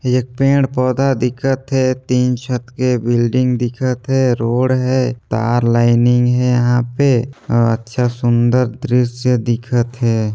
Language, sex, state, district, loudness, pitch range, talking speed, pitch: Hindi, male, Chhattisgarh, Sarguja, -16 LUFS, 120-130 Hz, 140 wpm, 125 Hz